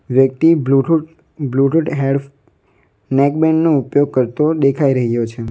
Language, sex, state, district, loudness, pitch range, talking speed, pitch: Gujarati, male, Gujarat, Valsad, -15 LUFS, 130-155 Hz, 120 wpm, 140 Hz